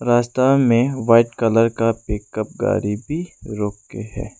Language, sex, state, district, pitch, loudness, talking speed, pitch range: Hindi, male, Arunachal Pradesh, Lower Dibang Valley, 115 Hz, -19 LUFS, 165 wpm, 105-120 Hz